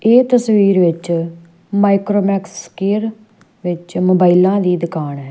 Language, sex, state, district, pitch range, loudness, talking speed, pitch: Punjabi, female, Punjab, Fazilka, 175-205 Hz, -15 LUFS, 115 wpm, 190 Hz